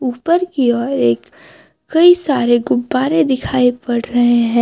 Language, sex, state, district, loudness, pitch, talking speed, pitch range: Hindi, female, Jharkhand, Garhwa, -15 LUFS, 250 Hz, 145 wpm, 240-285 Hz